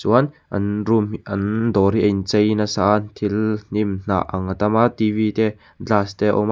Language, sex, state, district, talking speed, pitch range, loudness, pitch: Mizo, male, Mizoram, Aizawl, 230 wpm, 100-110 Hz, -20 LUFS, 105 Hz